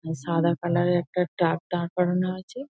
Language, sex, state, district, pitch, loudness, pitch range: Bengali, female, West Bengal, North 24 Parganas, 175 Hz, -25 LUFS, 170-180 Hz